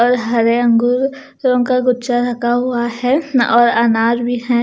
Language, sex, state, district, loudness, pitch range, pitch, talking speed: Hindi, female, Punjab, Kapurthala, -15 LUFS, 235-250 Hz, 245 Hz, 155 wpm